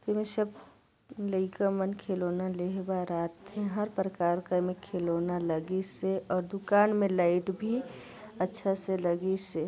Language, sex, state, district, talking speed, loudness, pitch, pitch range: Hindi, female, Chhattisgarh, Sarguja, 155 wpm, -30 LUFS, 190 Hz, 180-200 Hz